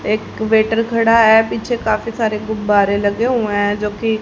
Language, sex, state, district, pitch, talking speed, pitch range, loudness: Hindi, female, Haryana, Charkhi Dadri, 220 Hz, 170 wpm, 210-225 Hz, -16 LUFS